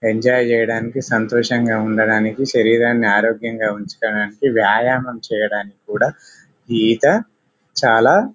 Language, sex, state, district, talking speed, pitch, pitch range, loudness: Telugu, male, Telangana, Karimnagar, 80 wpm, 115 Hz, 110-125 Hz, -17 LUFS